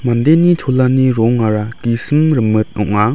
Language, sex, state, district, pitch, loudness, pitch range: Garo, male, Meghalaya, West Garo Hills, 120 Hz, -14 LUFS, 110-135 Hz